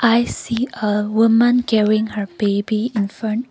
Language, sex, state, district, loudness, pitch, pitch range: English, female, Nagaland, Kohima, -18 LUFS, 220 Hz, 210-230 Hz